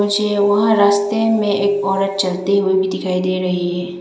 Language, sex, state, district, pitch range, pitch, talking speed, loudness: Hindi, female, Arunachal Pradesh, Lower Dibang Valley, 185-205 Hz, 195 Hz, 195 wpm, -16 LUFS